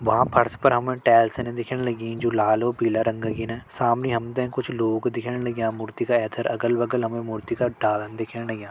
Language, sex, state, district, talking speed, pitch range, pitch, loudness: Hindi, male, Uttarakhand, Tehri Garhwal, 205 wpm, 110-120 Hz, 115 Hz, -24 LUFS